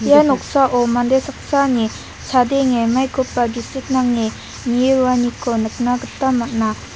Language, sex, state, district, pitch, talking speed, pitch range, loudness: Garo, female, Meghalaya, South Garo Hills, 250 Hz, 110 wpm, 240-265 Hz, -17 LUFS